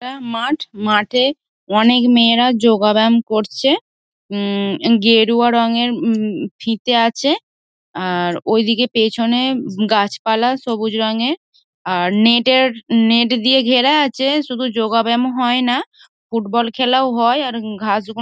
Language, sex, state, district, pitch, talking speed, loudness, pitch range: Bengali, female, West Bengal, Dakshin Dinajpur, 235 Hz, 120 wpm, -15 LUFS, 220-250 Hz